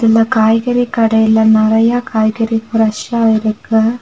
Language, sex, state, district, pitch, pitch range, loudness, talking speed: Tamil, female, Tamil Nadu, Nilgiris, 225 Hz, 220-230 Hz, -13 LUFS, 105 wpm